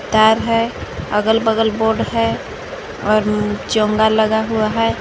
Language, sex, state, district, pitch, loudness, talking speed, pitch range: Hindi, female, Jharkhand, Garhwa, 220 Hz, -16 LUFS, 130 wpm, 215-225 Hz